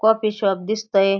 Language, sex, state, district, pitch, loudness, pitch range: Marathi, female, Maharashtra, Aurangabad, 210 Hz, -21 LUFS, 195-220 Hz